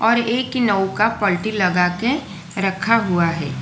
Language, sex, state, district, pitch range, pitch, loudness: Hindi, female, Gujarat, Valsad, 180-230 Hz, 200 Hz, -19 LUFS